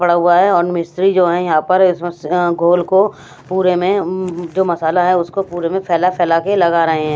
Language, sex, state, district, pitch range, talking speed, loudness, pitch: Hindi, female, Odisha, Sambalpur, 170-185 Hz, 220 wpm, -15 LUFS, 175 Hz